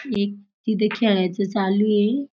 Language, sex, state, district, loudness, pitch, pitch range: Marathi, female, Maharashtra, Aurangabad, -22 LUFS, 210 Hz, 200-220 Hz